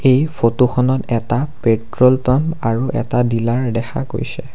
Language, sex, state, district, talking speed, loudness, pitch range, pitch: Assamese, male, Assam, Sonitpur, 130 wpm, -17 LUFS, 115-135 Hz, 125 Hz